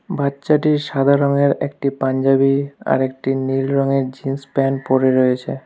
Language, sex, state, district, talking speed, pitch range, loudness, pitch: Bengali, male, West Bengal, Alipurduar, 140 wpm, 135-140 Hz, -18 LUFS, 135 Hz